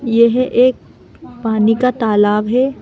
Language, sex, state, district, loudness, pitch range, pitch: Hindi, female, Madhya Pradesh, Bhopal, -14 LUFS, 220-250 Hz, 235 Hz